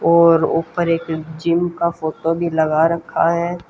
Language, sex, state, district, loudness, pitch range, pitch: Hindi, female, Haryana, Jhajjar, -18 LUFS, 160-170 Hz, 165 Hz